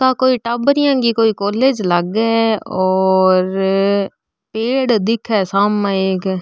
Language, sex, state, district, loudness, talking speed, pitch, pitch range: Marwari, female, Rajasthan, Nagaur, -15 LUFS, 120 wpm, 210 Hz, 190-235 Hz